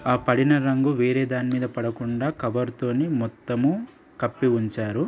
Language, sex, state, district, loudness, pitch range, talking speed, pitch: Telugu, male, Andhra Pradesh, Srikakulam, -24 LUFS, 120-135 Hz, 140 wpm, 125 Hz